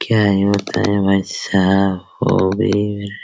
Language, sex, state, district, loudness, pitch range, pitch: Hindi, male, Bihar, Araria, -17 LUFS, 95-105 Hz, 100 Hz